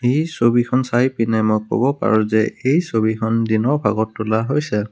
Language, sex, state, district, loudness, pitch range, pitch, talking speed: Assamese, male, Assam, Kamrup Metropolitan, -18 LUFS, 110-130 Hz, 115 Hz, 170 wpm